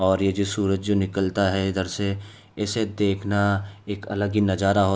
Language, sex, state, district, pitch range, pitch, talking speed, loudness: Hindi, male, Uttar Pradesh, Hamirpur, 95-100 Hz, 100 Hz, 205 wpm, -24 LUFS